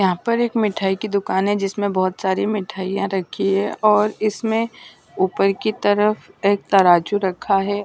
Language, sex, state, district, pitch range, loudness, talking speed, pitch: Hindi, female, Punjab, Pathankot, 190-210 Hz, -19 LUFS, 170 wpm, 200 Hz